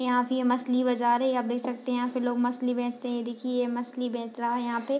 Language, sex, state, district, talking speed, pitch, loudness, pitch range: Hindi, female, Bihar, Madhepura, 300 wpm, 245 Hz, -28 LUFS, 240-250 Hz